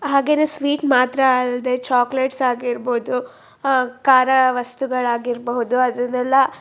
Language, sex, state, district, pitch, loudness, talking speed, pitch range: Kannada, female, Karnataka, Shimoga, 255 Hz, -18 LUFS, 100 wpm, 245-265 Hz